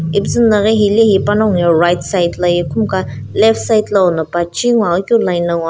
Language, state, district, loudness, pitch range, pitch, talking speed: Sumi, Nagaland, Dimapur, -13 LUFS, 170-215 Hz, 190 Hz, 190 wpm